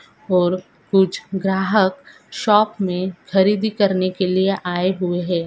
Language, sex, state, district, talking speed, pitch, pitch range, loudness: Hindi, female, Andhra Pradesh, Anantapur, 130 wpm, 190 Hz, 180-195 Hz, -19 LUFS